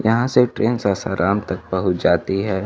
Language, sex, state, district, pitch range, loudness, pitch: Hindi, male, Bihar, Kaimur, 95-115 Hz, -19 LUFS, 100 Hz